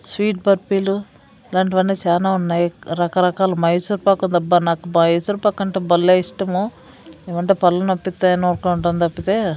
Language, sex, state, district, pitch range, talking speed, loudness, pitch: Telugu, female, Andhra Pradesh, Sri Satya Sai, 175-195 Hz, 95 wpm, -18 LUFS, 185 Hz